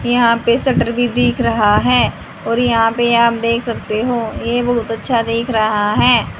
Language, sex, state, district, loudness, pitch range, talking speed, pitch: Hindi, female, Haryana, Charkhi Dadri, -15 LUFS, 230-240 Hz, 185 wpm, 235 Hz